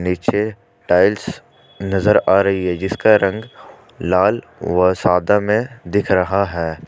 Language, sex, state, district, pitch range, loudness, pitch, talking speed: Hindi, male, Jharkhand, Ranchi, 90-105 Hz, -17 LUFS, 95 Hz, 140 wpm